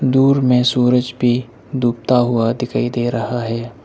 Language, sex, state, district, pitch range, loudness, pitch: Hindi, male, Arunachal Pradesh, Lower Dibang Valley, 120-125 Hz, -17 LUFS, 120 Hz